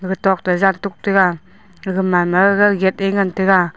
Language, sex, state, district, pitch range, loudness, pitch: Wancho, female, Arunachal Pradesh, Longding, 185-195 Hz, -16 LUFS, 190 Hz